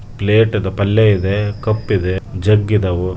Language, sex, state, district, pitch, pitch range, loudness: Kannada, male, Karnataka, Dharwad, 105 Hz, 95-110 Hz, -16 LUFS